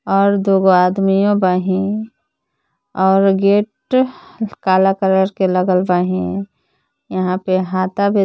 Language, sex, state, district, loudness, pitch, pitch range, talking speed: Bhojpuri, female, Jharkhand, Palamu, -16 LUFS, 190 Hz, 185-200 Hz, 110 wpm